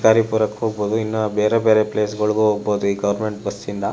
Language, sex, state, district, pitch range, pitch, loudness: Kannada, male, Karnataka, Shimoga, 105-110 Hz, 105 Hz, -19 LUFS